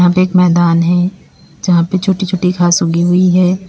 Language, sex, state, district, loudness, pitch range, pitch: Hindi, female, Uttar Pradesh, Lalitpur, -12 LUFS, 175-185 Hz, 180 Hz